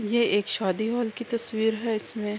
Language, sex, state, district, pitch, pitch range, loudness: Urdu, female, Andhra Pradesh, Anantapur, 220 Hz, 210-235 Hz, -27 LUFS